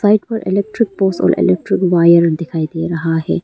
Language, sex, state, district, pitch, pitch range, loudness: Hindi, female, Arunachal Pradesh, Lower Dibang Valley, 170 Hz, 160-195 Hz, -15 LUFS